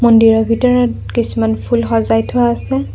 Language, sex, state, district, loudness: Assamese, female, Assam, Kamrup Metropolitan, -14 LUFS